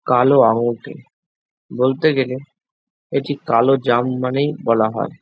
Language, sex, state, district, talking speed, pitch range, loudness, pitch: Bengali, male, West Bengal, Jhargram, 115 wpm, 120-135 Hz, -17 LUFS, 130 Hz